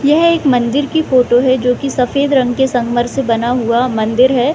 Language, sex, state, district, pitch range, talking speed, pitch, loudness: Hindi, female, Bihar, Gopalganj, 245-275 Hz, 235 wpm, 255 Hz, -13 LUFS